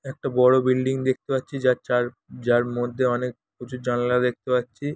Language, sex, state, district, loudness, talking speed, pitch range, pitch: Bengali, male, West Bengal, Jhargram, -23 LUFS, 170 wpm, 125-130 Hz, 125 Hz